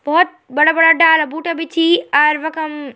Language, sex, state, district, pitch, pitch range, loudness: Garhwali, female, Uttarakhand, Tehri Garhwal, 320 Hz, 300-330 Hz, -14 LUFS